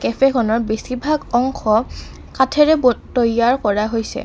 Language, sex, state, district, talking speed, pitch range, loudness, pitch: Assamese, female, Assam, Kamrup Metropolitan, 125 wpm, 225-270 Hz, -17 LUFS, 245 Hz